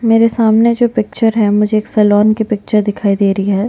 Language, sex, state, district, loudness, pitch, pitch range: Hindi, female, Chhattisgarh, Bastar, -12 LUFS, 215 Hz, 205-225 Hz